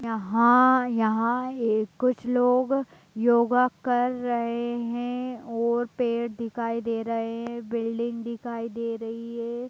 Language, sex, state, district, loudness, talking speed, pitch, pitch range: Hindi, female, Bihar, Begusarai, -26 LUFS, 115 wpm, 235 Hz, 230-245 Hz